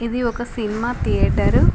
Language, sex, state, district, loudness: Telugu, female, Telangana, Komaram Bheem, -20 LUFS